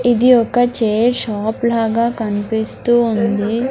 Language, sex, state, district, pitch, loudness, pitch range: Telugu, male, Andhra Pradesh, Sri Satya Sai, 230 Hz, -16 LUFS, 220-240 Hz